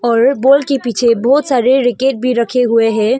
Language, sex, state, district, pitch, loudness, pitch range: Hindi, female, Arunachal Pradesh, Longding, 250 Hz, -13 LUFS, 235-265 Hz